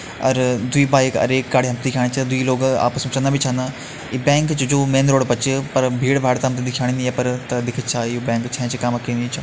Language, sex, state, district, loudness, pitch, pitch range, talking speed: Hindi, male, Uttarakhand, Uttarkashi, -19 LUFS, 130 Hz, 125-135 Hz, 305 wpm